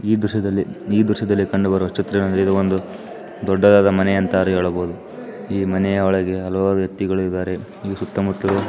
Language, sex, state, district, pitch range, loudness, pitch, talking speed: Kannada, male, Karnataka, Chamarajanagar, 95-100 Hz, -19 LUFS, 95 Hz, 145 wpm